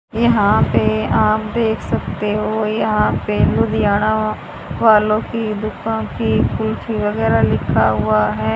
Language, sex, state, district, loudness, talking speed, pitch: Hindi, female, Haryana, Rohtak, -17 LUFS, 125 wpm, 210 Hz